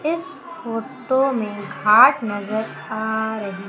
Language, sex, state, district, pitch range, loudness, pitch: Hindi, female, Madhya Pradesh, Umaria, 210-265 Hz, -20 LUFS, 220 Hz